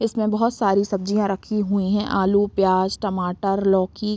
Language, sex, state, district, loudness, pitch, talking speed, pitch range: Hindi, female, Uttar Pradesh, Varanasi, -21 LUFS, 200 Hz, 160 wpm, 195-210 Hz